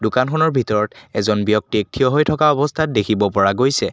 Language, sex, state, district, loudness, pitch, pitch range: Assamese, male, Assam, Kamrup Metropolitan, -17 LUFS, 115 Hz, 105-145 Hz